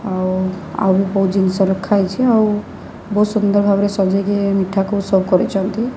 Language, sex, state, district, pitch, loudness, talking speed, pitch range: Odia, female, Odisha, Sambalpur, 195 Hz, -16 LUFS, 130 wpm, 190-205 Hz